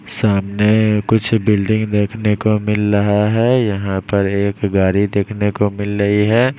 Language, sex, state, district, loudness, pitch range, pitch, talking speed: Hindi, male, Maharashtra, Mumbai Suburban, -16 LUFS, 100-110 Hz, 105 Hz, 155 wpm